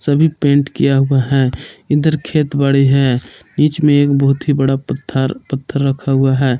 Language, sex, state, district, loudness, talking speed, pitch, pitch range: Hindi, male, Jharkhand, Palamu, -14 LUFS, 180 wpm, 140 Hz, 135-145 Hz